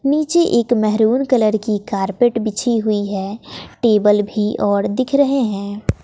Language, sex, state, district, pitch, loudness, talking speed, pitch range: Hindi, female, Bihar, West Champaran, 215 Hz, -17 LUFS, 150 wpm, 205-245 Hz